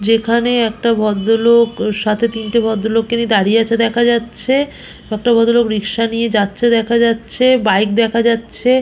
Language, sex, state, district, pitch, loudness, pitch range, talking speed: Bengali, female, West Bengal, Purulia, 230 Hz, -14 LUFS, 220-235 Hz, 145 wpm